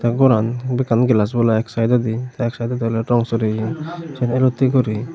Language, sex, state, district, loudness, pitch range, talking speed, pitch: Chakma, male, Tripura, Unakoti, -18 LUFS, 115-130 Hz, 185 wpm, 120 Hz